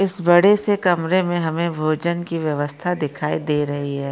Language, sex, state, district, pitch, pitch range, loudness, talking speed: Hindi, female, Maharashtra, Pune, 170 Hz, 150-180 Hz, -20 LUFS, 190 wpm